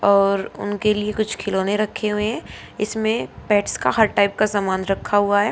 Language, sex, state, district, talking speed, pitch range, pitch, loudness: Hindi, female, Haryana, Charkhi Dadri, 195 wpm, 200-215 Hz, 205 Hz, -21 LUFS